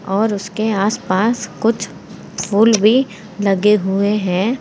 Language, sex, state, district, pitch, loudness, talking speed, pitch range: Hindi, female, Uttar Pradesh, Saharanpur, 210 Hz, -16 LUFS, 130 wpm, 200-220 Hz